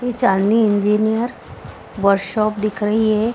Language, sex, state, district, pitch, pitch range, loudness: Hindi, female, Bihar, Samastipur, 215 Hz, 210-225 Hz, -18 LUFS